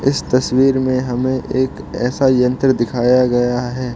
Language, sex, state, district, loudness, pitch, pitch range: Hindi, male, Arunachal Pradesh, Lower Dibang Valley, -16 LUFS, 125 Hz, 125-130 Hz